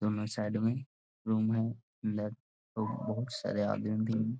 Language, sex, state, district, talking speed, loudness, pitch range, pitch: Hindi, male, Bihar, Jahanabad, 150 wpm, -35 LUFS, 105-115 Hz, 110 Hz